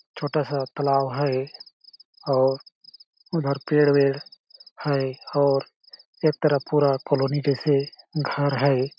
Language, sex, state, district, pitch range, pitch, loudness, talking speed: Hindi, male, Chhattisgarh, Balrampur, 135-145 Hz, 140 Hz, -23 LUFS, 115 wpm